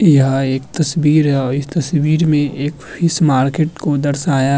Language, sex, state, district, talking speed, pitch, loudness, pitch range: Hindi, male, Uttar Pradesh, Muzaffarnagar, 185 wpm, 145 Hz, -15 LUFS, 135-155 Hz